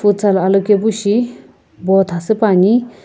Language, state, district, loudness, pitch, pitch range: Sumi, Nagaland, Kohima, -14 LUFS, 205 Hz, 195-220 Hz